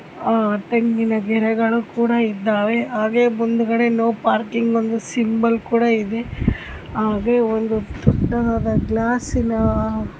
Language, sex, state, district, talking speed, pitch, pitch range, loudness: Kannada, female, Karnataka, Mysore, 100 wpm, 230 Hz, 220-235 Hz, -19 LUFS